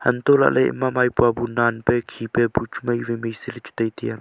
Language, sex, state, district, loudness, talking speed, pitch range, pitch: Wancho, male, Arunachal Pradesh, Longding, -21 LUFS, 200 wpm, 115-120 Hz, 120 Hz